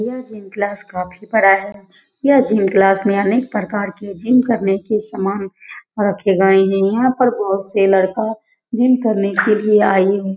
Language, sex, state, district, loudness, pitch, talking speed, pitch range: Hindi, female, Bihar, Saran, -16 LUFS, 205 Hz, 185 wpm, 195-225 Hz